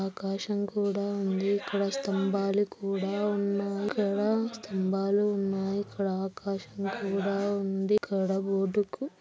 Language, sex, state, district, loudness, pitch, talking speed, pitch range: Telugu, female, Andhra Pradesh, Anantapur, -30 LUFS, 200 Hz, 105 wpm, 195-205 Hz